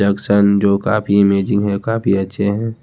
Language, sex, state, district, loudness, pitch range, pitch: Hindi, male, Haryana, Rohtak, -15 LUFS, 100-105 Hz, 100 Hz